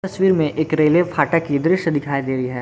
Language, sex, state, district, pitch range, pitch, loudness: Hindi, male, Jharkhand, Garhwa, 145-170 Hz, 155 Hz, -18 LUFS